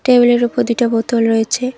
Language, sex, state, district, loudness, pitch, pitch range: Bengali, female, West Bengal, Cooch Behar, -14 LUFS, 240 Hz, 230-245 Hz